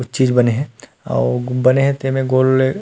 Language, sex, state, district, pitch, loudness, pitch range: Chhattisgarhi, male, Chhattisgarh, Rajnandgaon, 130 Hz, -16 LUFS, 125-130 Hz